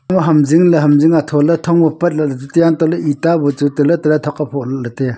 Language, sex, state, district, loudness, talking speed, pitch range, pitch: Wancho, male, Arunachal Pradesh, Longding, -13 LUFS, 185 wpm, 145-165 Hz, 155 Hz